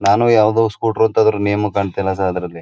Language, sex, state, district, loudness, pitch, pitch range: Kannada, male, Karnataka, Mysore, -16 LUFS, 105 Hz, 95-110 Hz